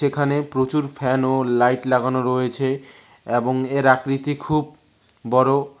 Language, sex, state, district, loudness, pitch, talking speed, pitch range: Bengali, male, West Bengal, Cooch Behar, -20 LUFS, 130 Hz, 125 wpm, 125-140 Hz